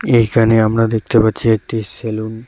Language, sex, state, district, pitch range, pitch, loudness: Bengali, male, West Bengal, Cooch Behar, 110-115 Hz, 110 Hz, -15 LUFS